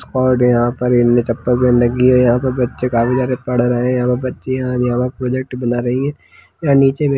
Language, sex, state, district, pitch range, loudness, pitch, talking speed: Hindi, male, Chhattisgarh, Kabirdham, 120-130 Hz, -15 LUFS, 125 Hz, 210 wpm